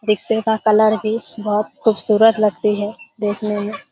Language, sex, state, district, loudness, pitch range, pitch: Hindi, female, Bihar, Kishanganj, -18 LUFS, 210-220 Hz, 215 Hz